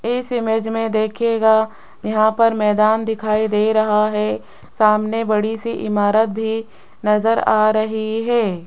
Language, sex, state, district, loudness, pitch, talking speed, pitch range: Hindi, female, Rajasthan, Jaipur, -18 LUFS, 220 Hz, 140 wpm, 215-225 Hz